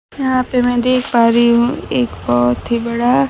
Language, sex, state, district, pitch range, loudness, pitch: Hindi, female, Bihar, Kaimur, 230-255 Hz, -15 LUFS, 235 Hz